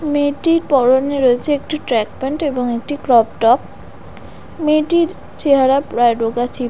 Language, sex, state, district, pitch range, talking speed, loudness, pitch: Bengali, female, West Bengal, Dakshin Dinajpur, 245-295 Hz, 135 wpm, -16 LUFS, 275 Hz